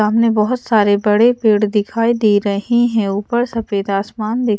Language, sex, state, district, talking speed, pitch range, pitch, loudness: Hindi, female, Odisha, Sambalpur, 170 wpm, 205-235 Hz, 215 Hz, -15 LUFS